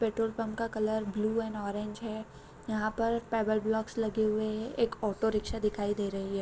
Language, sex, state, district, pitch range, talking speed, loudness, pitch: Hindi, female, Bihar, Sitamarhi, 210-225 Hz, 215 wpm, -32 LUFS, 220 Hz